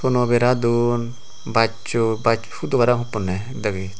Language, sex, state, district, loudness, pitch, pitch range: Chakma, male, Tripura, Unakoti, -20 LUFS, 120 Hz, 110-120 Hz